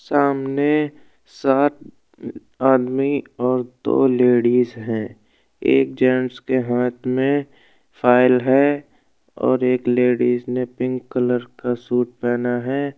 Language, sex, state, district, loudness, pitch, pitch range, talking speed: Hindi, male, Uttar Pradesh, Budaun, -19 LUFS, 125 Hz, 125-135 Hz, 110 wpm